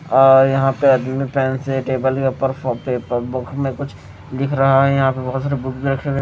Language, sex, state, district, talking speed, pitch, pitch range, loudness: Hindi, male, Himachal Pradesh, Shimla, 240 wpm, 135 Hz, 130-135 Hz, -17 LUFS